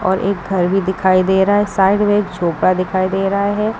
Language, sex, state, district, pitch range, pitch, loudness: Hindi, female, Uttar Pradesh, Lucknow, 185-200 Hz, 190 Hz, -16 LUFS